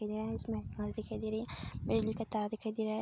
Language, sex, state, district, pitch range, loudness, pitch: Hindi, female, Bihar, Darbhanga, 210-220 Hz, -38 LUFS, 220 Hz